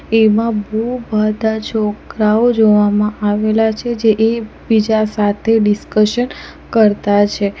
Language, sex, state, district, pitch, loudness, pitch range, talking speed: Gujarati, female, Gujarat, Valsad, 215 Hz, -15 LUFS, 210-225 Hz, 110 wpm